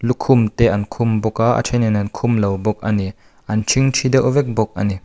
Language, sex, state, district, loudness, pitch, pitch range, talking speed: Mizo, male, Mizoram, Aizawl, -17 LUFS, 110 Hz, 105-120 Hz, 250 wpm